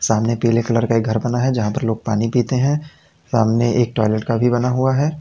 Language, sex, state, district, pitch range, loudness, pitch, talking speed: Hindi, male, Uttar Pradesh, Lalitpur, 115-125 Hz, -18 LUFS, 115 Hz, 255 wpm